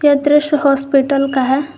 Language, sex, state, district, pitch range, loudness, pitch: Hindi, female, Jharkhand, Garhwa, 275-290 Hz, -14 LUFS, 280 Hz